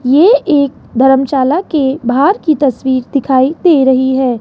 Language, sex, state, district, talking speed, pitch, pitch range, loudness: Hindi, female, Rajasthan, Jaipur, 150 wpm, 270 Hz, 260-295 Hz, -11 LUFS